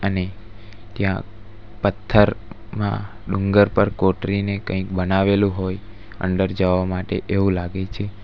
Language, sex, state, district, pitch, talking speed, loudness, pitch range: Gujarati, male, Gujarat, Valsad, 100 Hz, 110 wpm, -21 LUFS, 95-105 Hz